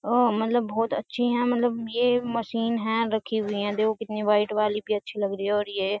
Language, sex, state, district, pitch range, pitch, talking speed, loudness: Hindi, female, Uttar Pradesh, Jyotiba Phule Nagar, 210-235 Hz, 220 Hz, 230 wpm, -25 LUFS